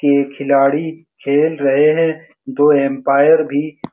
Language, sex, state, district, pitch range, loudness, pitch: Hindi, male, Bihar, Saran, 140-155 Hz, -15 LUFS, 145 Hz